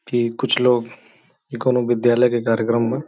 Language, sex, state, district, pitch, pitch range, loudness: Bhojpuri, male, Uttar Pradesh, Gorakhpur, 120 Hz, 115-125 Hz, -19 LUFS